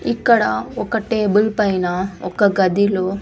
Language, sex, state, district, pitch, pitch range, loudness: Telugu, female, Andhra Pradesh, Sri Satya Sai, 200 Hz, 185-215 Hz, -18 LUFS